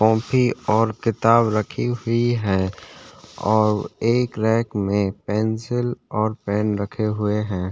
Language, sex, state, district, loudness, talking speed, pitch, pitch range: Hindi, male, Chhattisgarh, Sukma, -21 LUFS, 130 wpm, 110 Hz, 105-115 Hz